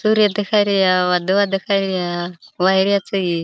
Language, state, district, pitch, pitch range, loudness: Bhili, Maharashtra, Dhule, 195 Hz, 180-205 Hz, -17 LUFS